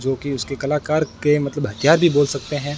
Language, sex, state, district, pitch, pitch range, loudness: Hindi, male, Rajasthan, Bikaner, 145 Hz, 135-150 Hz, -19 LUFS